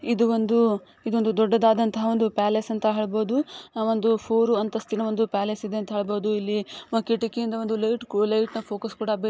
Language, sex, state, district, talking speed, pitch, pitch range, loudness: Kannada, female, Karnataka, Dakshina Kannada, 155 wpm, 220 Hz, 215-230 Hz, -24 LUFS